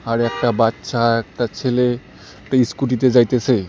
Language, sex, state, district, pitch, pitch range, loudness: Bengali, male, West Bengal, Cooch Behar, 120 Hz, 115-125 Hz, -18 LUFS